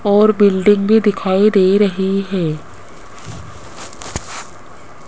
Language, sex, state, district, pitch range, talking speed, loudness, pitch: Hindi, female, Rajasthan, Jaipur, 190-205 Hz, 80 wpm, -14 LUFS, 195 Hz